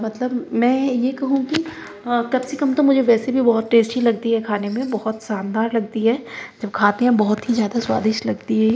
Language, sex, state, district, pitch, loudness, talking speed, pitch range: Hindi, female, Uttar Pradesh, Hamirpur, 235 Hz, -19 LUFS, 220 wpm, 220-255 Hz